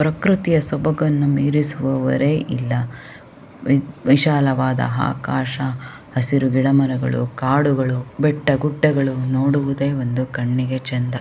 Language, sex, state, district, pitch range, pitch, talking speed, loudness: Kannada, female, Karnataka, Shimoga, 130-145 Hz, 135 Hz, 80 wpm, -19 LUFS